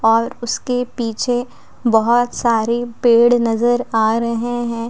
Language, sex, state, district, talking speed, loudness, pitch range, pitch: Hindi, female, Delhi, New Delhi, 120 wpm, -17 LUFS, 230-245 Hz, 235 Hz